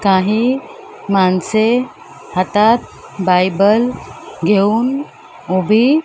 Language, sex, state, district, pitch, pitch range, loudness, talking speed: Marathi, male, Maharashtra, Mumbai Suburban, 210 Hz, 190-240 Hz, -15 LUFS, 60 wpm